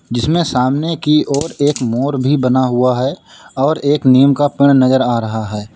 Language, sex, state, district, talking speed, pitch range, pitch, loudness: Hindi, male, Uttar Pradesh, Lalitpur, 200 wpm, 125-145 Hz, 135 Hz, -14 LUFS